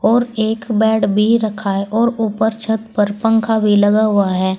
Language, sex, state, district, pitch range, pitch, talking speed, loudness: Hindi, female, Uttar Pradesh, Saharanpur, 205-225 Hz, 220 Hz, 195 wpm, -16 LUFS